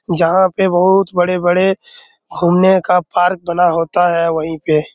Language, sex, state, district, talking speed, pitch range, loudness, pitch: Hindi, male, Bihar, Araria, 145 wpm, 170-190 Hz, -14 LUFS, 180 Hz